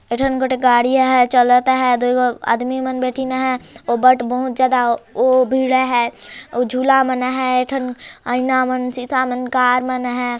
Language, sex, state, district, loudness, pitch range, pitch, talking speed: Chhattisgarhi, female, Chhattisgarh, Jashpur, -17 LUFS, 245-260 Hz, 255 Hz, 175 wpm